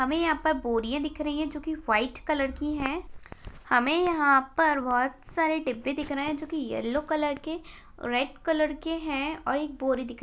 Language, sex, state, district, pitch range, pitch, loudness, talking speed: Hindi, female, Maharashtra, Dhule, 265-315 Hz, 295 Hz, -28 LUFS, 205 wpm